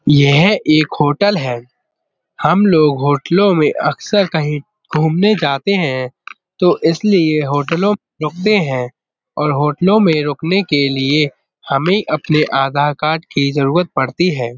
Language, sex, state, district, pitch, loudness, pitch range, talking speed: Hindi, male, Uttar Pradesh, Budaun, 155 Hz, -15 LUFS, 140-180 Hz, 135 wpm